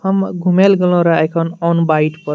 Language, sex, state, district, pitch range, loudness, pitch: Maithili, male, Bihar, Madhepura, 160-185 Hz, -14 LUFS, 170 Hz